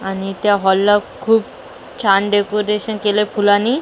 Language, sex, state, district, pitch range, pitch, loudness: Marathi, female, Maharashtra, Mumbai Suburban, 200-210 Hz, 205 Hz, -16 LUFS